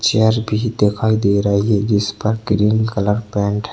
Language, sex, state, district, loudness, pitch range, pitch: Hindi, male, Chhattisgarh, Kabirdham, -17 LUFS, 100-110 Hz, 105 Hz